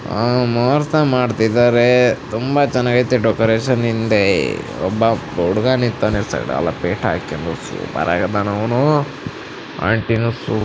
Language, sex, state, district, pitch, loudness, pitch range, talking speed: Kannada, female, Karnataka, Raichur, 120 Hz, -17 LUFS, 110-125 Hz, 130 wpm